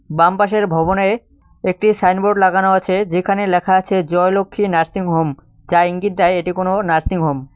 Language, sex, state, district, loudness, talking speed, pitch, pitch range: Bengali, male, West Bengal, Cooch Behar, -16 LUFS, 150 wpm, 185 Hz, 170-200 Hz